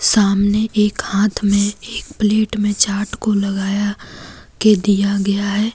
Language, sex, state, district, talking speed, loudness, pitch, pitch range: Hindi, female, Jharkhand, Deoghar, 145 wpm, -17 LUFS, 205 Hz, 200-215 Hz